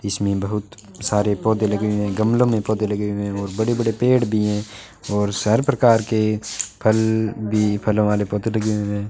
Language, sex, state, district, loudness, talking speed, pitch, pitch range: Hindi, male, Rajasthan, Bikaner, -20 LUFS, 205 wpm, 105 Hz, 105-110 Hz